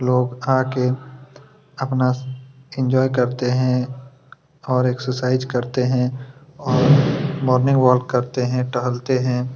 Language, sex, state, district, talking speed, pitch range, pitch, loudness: Hindi, male, Chhattisgarh, Kabirdham, 105 wpm, 125-130 Hz, 130 Hz, -20 LUFS